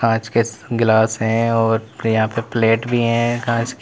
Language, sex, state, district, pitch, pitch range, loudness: Hindi, male, Uttar Pradesh, Lalitpur, 115 Hz, 110-115 Hz, -18 LUFS